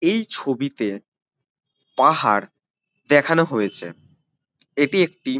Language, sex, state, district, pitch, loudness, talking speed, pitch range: Bengali, male, West Bengal, Kolkata, 145 Hz, -20 LUFS, 90 wpm, 130-165 Hz